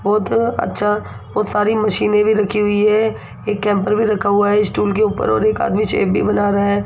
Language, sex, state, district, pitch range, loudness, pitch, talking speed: Hindi, female, Rajasthan, Jaipur, 205-215 Hz, -17 LUFS, 210 Hz, 225 wpm